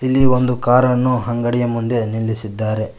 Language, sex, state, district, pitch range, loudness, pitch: Kannada, male, Karnataka, Koppal, 110-125 Hz, -17 LUFS, 120 Hz